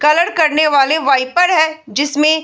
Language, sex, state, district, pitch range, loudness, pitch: Hindi, female, Bihar, Bhagalpur, 290-315 Hz, -13 LUFS, 305 Hz